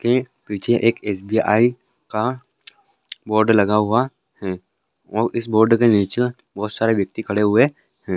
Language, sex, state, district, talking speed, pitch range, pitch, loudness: Hindi, male, Uttarakhand, Uttarkashi, 145 wpm, 105-120 Hz, 110 Hz, -19 LUFS